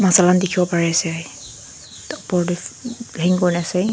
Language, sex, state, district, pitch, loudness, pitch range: Nagamese, female, Nagaland, Dimapur, 175 Hz, -19 LUFS, 165-180 Hz